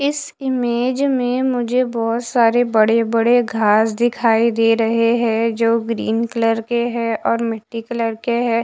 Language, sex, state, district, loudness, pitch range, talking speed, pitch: Hindi, female, Bihar, West Champaran, -17 LUFS, 230-245 Hz, 155 wpm, 230 Hz